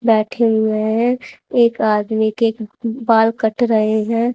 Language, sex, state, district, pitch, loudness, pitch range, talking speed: Hindi, female, Haryana, Rohtak, 225 Hz, -17 LUFS, 220-235 Hz, 135 wpm